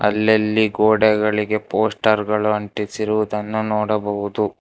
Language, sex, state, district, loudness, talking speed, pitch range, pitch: Kannada, male, Karnataka, Bangalore, -19 LUFS, 80 wpm, 105-110 Hz, 105 Hz